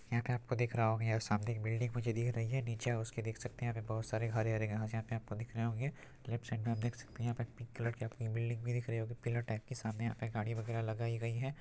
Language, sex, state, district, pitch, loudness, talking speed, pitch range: Hindi, male, Bihar, Purnia, 115 Hz, -39 LUFS, 330 wpm, 110-120 Hz